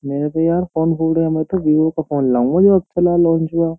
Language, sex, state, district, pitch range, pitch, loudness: Hindi, male, Uttar Pradesh, Jyotiba Phule Nagar, 155-170 Hz, 165 Hz, -16 LUFS